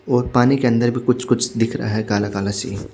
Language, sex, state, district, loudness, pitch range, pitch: Hindi, male, Odisha, Khordha, -19 LUFS, 105-125 Hz, 120 Hz